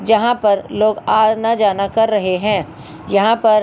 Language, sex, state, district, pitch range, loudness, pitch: Hindi, female, Delhi, New Delhi, 200-225 Hz, -15 LUFS, 215 Hz